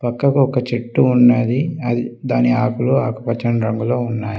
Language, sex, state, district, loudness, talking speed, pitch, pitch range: Telugu, male, Telangana, Mahabubabad, -17 LUFS, 135 wpm, 120 Hz, 120-125 Hz